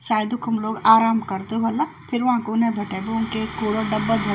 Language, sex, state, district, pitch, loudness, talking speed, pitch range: Garhwali, female, Uttarakhand, Tehri Garhwal, 225 Hz, -21 LUFS, 205 wpm, 215-225 Hz